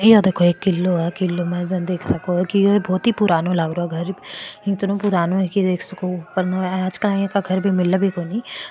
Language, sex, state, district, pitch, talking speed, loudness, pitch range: Marwari, female, Rajasthan, Churu, 185 Hz, 180 wpm, -20 LUFS, 180-200 Hz